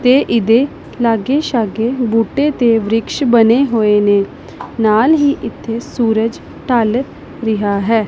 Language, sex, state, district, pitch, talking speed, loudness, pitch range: Punjabi, female, Punjab, Pathankot, 230 Hz, 125 wpm, -14 LUFS, 225-255 Hz